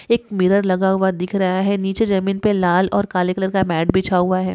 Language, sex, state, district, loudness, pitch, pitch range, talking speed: Hindi, female, Maharashtra, Sindhudurg, -18 LUFS, 190 Hz, 185-195 Hz, 250 wpm